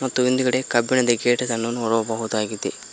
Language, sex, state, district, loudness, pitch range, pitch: Kannada, male, Karnataka, Koppal, -21 LUFS, 115-125 Hz, 120 Hz